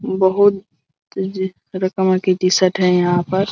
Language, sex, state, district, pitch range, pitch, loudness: Hindi, male, Jharkhand, Jamtara, 180-190 Hz, 185 Hz, -17 LUFS